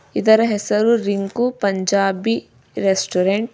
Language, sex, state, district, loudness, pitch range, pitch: Kannada, female, Karnataka, Bidar, -18 LUFS, 195-225 Hz, 205 Hz